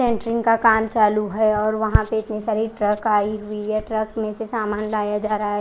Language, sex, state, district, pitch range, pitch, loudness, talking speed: Hindi, female, Odisha, Khordha, 210-220 Hz, 215 Hz, -21 LUFS, 215 wpm